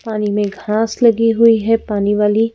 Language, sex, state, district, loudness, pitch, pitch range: Hindi, female, Madhya Pradesh, Bhopal, -15 LUFS, 220 Hz, 210-230 Hz